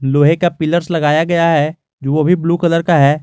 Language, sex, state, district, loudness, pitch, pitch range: Hindi, male, Jharkhand, Garhwa, -14 LUFS, 165 Hz, 150-170 Hz